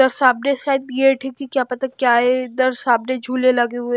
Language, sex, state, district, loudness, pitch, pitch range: Hindi, female, Haryana, Jhajjar, -18 LUFS, 255 Hz, 250-265 Hz